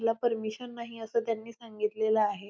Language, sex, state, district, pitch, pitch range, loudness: Marathi, female, Maharashtra, Pune, 225 Hz, 215-230 Hz, -31 LUFS